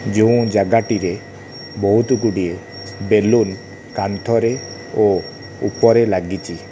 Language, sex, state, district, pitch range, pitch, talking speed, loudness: Odia, male, Odisha, Khordha, 95-115 Hz, 105 Hz, 105 wpm, -17 LUFS